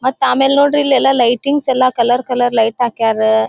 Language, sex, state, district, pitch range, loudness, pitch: Kannada, female, Karnataka, Dharwad, 235-270 Hz, -13 LUFS, 250 Hz